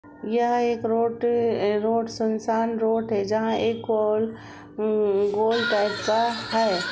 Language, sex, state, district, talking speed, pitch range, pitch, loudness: Hindi, female, Uttar Pradesh, Jalaun, 130 wpm, 215-230 Hz, 225 Hz, -24 LUFS